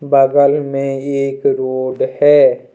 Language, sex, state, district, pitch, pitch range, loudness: Hindi, male, Jharkhand, Deoghar, 140 Hz, 135-145 Hz, -14 LUFS